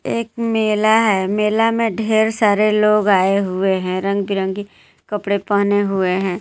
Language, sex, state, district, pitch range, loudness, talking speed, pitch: Hindi, female, Jharkhand, Garhwa, 195-220 Hz, -17 LUFS, 170 wpm, 205 Hz